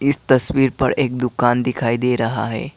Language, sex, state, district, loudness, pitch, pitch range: Hindi, male, Assam, Kamrup Metropolitan, -18 LUFS, 125 Hz, 120-135 Hz